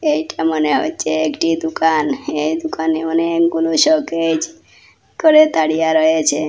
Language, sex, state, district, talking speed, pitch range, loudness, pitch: Bengali, female, Assam, Hailakandi, 110 wpm, 160-165 Hz, -16 LUFS, 160 Hz